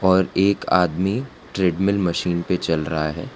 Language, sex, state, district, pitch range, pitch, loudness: Hindi, male, Gujarat, Valsad, 85-95 Hz, 90 Hz, -21 LUFS